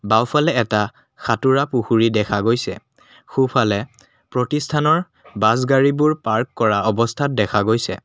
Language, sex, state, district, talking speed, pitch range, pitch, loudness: Assamese, male, Assam, Kamrup Metropolitan, 110 wpm, 110-135 Hz, 120 Hz, -19 LUFS